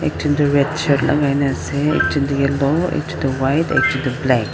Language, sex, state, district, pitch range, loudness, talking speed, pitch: Nagamese, female, Nagaland, Dimapur, 135-145 Hz, -18 LUFS, 250 wpm, 140 Hz